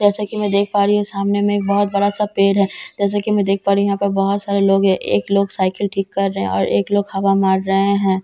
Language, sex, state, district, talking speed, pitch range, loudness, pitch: Hindi, female, Bihar, Katihar, 315 wpm, 195-205 Hz, -17 LUFS, 200 Hz